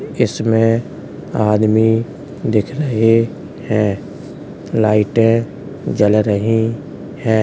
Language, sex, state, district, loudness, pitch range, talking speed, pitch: Hindi, male, Uttar Pradesh, Hamirpur, -16 LUFS, 105-115 Hz, 75 wpm, 110 Hz